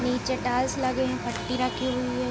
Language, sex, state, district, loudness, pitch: Hindi, female, Jharkhand, Sahebganj, -27 LUFS, 250 Hz